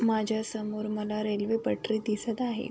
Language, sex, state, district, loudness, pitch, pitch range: Marathi, female, Maharashtra, Sindhudurg, -31 LUFS, 220 Hz, 215-225 Hz